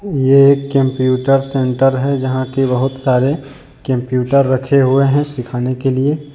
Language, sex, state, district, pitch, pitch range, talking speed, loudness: Hindi, male, Jharkhand, Deoghar, 135 Hz, 130-140 Hz, 150 wpm, -14 LUFS